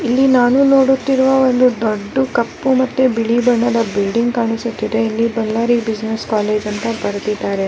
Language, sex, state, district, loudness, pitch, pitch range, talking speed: Kannada, female, Karnataka, Bellary, -16 LUFS, 230 Hz, 220-260 Hz, 30 wpm